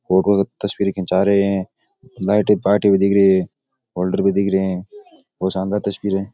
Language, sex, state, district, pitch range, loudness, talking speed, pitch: Rajasthani, male, Rajasthan, Nagaur, 95-100 Hz, -18 LUFS, 200 wpm, 100 Hz